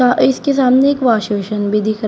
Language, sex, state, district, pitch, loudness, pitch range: Hindi, female, Uttar Pradesh, Shamli, 245 Hz, -14 LUFS, 210-265 Hz